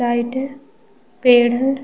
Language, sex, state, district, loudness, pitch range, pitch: Hindi, female, Bihar, Vaishali, -17 LUFS, 240-270 Hz, 245 Hz